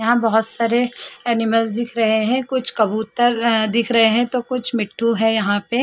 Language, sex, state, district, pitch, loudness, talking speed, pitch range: Hindi, female, Chhattisgarh, Rajnandgaon, 230 Hz, -18 LUFS, 185 wpm, 225-240 Hz